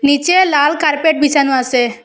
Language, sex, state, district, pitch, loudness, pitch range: Bengali, female, Assam, Hailakandi, 290 Hz, -12 LUFS, 265-310 Hz